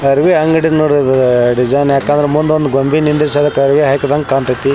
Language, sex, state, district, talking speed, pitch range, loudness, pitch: Kannada, male, Karnataka, Belgaum, 190 wpm, 135-150 Hz, -12 LUFS, 145 Hz